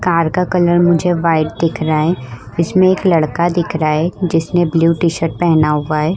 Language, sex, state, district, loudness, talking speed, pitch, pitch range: Hindi, female, Bihar, Vaishali, -14 LUFS, 195 wpm, 165 Hz, 155-175 Hz